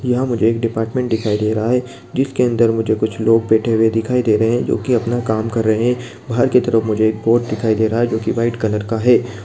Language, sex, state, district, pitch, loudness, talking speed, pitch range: Hindi, male, Bihar, Begusarai, 115 Hz, -17 LUFS, 265 wpm, 110-120 Hz